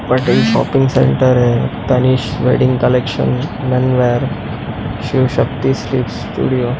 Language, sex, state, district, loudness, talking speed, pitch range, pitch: Hindi, male, Maharashtra, Mumbai Suburban, -15 LUFS, 125 wpm, 120-130 Hz, 125 Hz